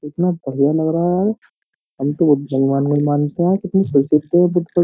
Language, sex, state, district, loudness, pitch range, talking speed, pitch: Hindi, male, Uttar Pradesh, Jyotiba Phule Nagar, -17 LUFS, 145-175 Hz, 110 wpm, 150 Hz